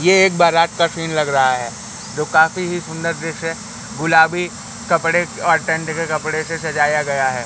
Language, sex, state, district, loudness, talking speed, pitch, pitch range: Hindi, male, Madhya Pradesh, Katni, -17 LUFS, 185 wpm, 165 Hz, 155-170 Hz